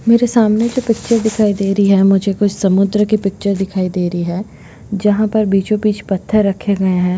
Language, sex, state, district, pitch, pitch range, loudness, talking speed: Hindi, female, Chhattisgarh, Bastar, 200 Hz, 195-215 Hz, -15 LUFS, 210 wpm